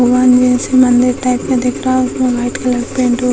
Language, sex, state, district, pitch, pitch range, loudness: Hindi, female, Bihar, Sitamarhi, 250 Hz, 245-255 Hz, -13 LUFS